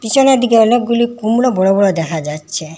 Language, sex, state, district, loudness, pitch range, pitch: Bengali, female, Assam, Hailakandi, -13 LUFS, 165-240 Hz, 225 Hz